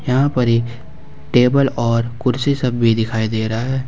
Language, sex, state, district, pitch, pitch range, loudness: Hindi, male, Jharkhand, Ranchi, 120 Hz, 115-130 Hz, -17 LUFS